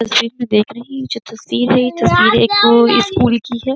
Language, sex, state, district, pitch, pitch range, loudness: Hindi, female, Uttar Pradesh, Jyotiba Phule Nagar, 240 Hz, 230-255 Hz, -13 LUFS